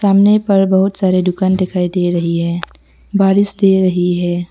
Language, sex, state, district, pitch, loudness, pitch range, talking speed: Hindi, female, Arunachal Pradesh, Lower Dibang Valley, 185 Hz, -14 LUFS, 175-195 Hz, 175 wpm